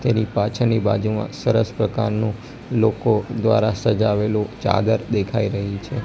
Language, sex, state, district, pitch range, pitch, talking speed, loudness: Gujarati, male, Gujarat, Gandhinagar, 105-115 Hz, 110 Hz, 120 wpm, -20 LUFS